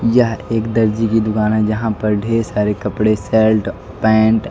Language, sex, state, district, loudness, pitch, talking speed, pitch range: Hindi, male, Odisha, Nuapada, -16 LUFS, 110 Hz, 185 wpm, 105-115 Hz